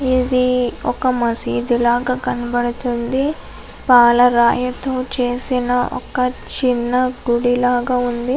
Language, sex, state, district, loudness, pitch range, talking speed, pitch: Telugu, female, Andhra Pradesh, Chittoor, -17 LUFS, 240-255 Hz, 95 wpm, 245 Hz